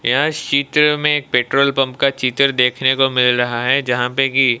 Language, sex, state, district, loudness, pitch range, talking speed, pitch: Hindi, male, Odisha, Malkangiri, -16 LUFS, 125-140 Hz, 210 wpm, 135 Hz